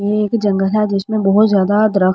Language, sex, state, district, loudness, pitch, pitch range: Hindi, female, Delhi, New Delhi, -14 LUFS, 205 Hz, 195-215 Hz